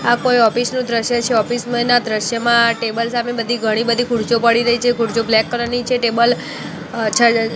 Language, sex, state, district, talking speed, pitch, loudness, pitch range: Gujarati, female, Gujarat, Gandhinagar, 200 wpm, 235 Hz, -16 LUFS, 230-240 Hz